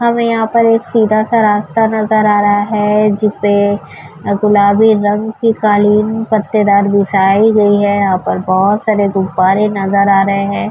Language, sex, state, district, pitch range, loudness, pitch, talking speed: Urdu, female, Uttar Pradesh, Budaun, 200-215 Hz, -12 LUFS, 210 Hz, 160 wpm